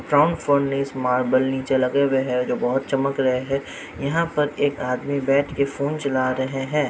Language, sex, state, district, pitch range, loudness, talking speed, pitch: Hindi, male, Jharkhand, Jamtara, 130-140 Hz, -22 LUFS, 190 wpm, 135 Hz